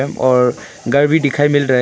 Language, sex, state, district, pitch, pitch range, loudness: Hindi, male, Arunachal Pradesh, Longding, 140 Hz, 125-145 Hz, -14 LUFS